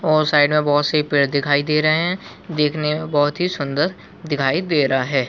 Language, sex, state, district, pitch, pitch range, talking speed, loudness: Hindi, male, Chhattisgarh, Bilaspur, 150 Hz, 145-155 Hz, 205 wpm, -18 LUFS